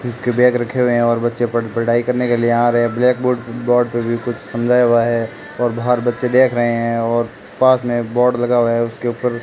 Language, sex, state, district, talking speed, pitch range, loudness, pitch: Hindi, male, Rajasthan, Bikaner, 255 wpm, 115-125 Hz, -16 LUFS, 120 Hz